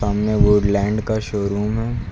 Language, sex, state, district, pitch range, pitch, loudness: Hindi, male, Uttar Pradesh, Lucknow, 100-110 Hz, 105 Hz, -19 LUFS